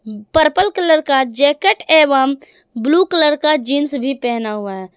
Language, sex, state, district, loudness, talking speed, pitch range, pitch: Hindi, female, Jharkhand, Garhwa, -14 LUFS, 155 wpm, 245-315 Hz, 285 Hz